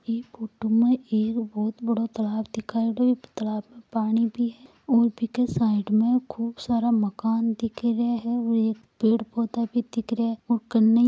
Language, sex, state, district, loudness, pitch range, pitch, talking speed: Marwari, female, Rajasthan, Nagaur, -25 LUFS, 220-235 Hz, 230 Hz, 180 wpm